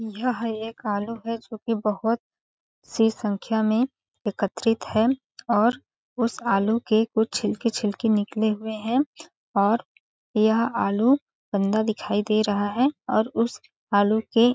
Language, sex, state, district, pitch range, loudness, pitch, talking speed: Hindi, female, Chhattisgarh, Balrampur, 210-230 Hz, -24 LUFS, 220 Hz, 135 wpm